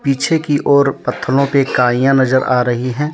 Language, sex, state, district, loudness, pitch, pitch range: Hindi, male, Jharkhand, Deoghar, -14 LUFS, 135 Hz, 125-140 Hz